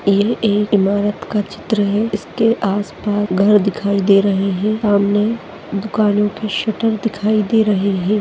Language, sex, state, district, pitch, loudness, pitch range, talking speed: Hindi, female, Maharashtra, Aurangabad, 205 Hz, -17 LUFS, 200-215 Hz, 170 wpm